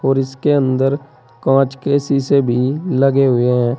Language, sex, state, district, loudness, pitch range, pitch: Hindi, male, Uttar Pradesh, Saharanpur, -16 LUFS, 130-140 Hz, 135 Hz